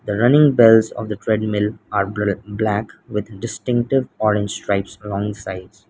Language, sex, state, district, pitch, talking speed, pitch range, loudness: English, male, Sikkim, Gangtok, 105 Hz, 140 wpm, 100-115 Hz, -19 LUFS